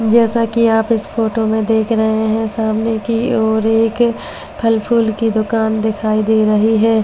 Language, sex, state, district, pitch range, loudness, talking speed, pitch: Hindi, female, Delhi, New Delhi, 220-225 Hz, -15 LUFS, 195 wpm, 225 Hz